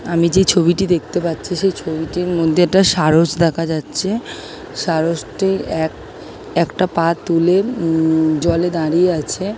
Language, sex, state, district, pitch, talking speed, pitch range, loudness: Bengali, female, West Bengal, Malda, 170 Hz, 130 wpm, 160-180 Hz, -16 LUFS